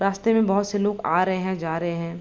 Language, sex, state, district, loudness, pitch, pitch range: Hindi, female, Bihar, Begusarai, -23 LUFS, 190 Hz, 170-205 Hz